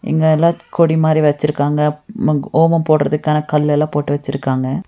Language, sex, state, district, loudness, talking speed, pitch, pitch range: Tamil, female, Tamil Nadu, Nilgiris, -15 LUFS, 110 wpm, 150 Hz, 145-160 Hz